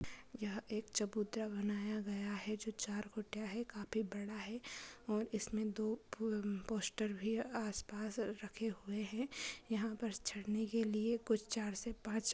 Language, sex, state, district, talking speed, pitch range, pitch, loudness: Hindi, female, Karnataka, Gulbarga, 130 wpm, 210-225 Hz, 215 Hz, -42 LUFS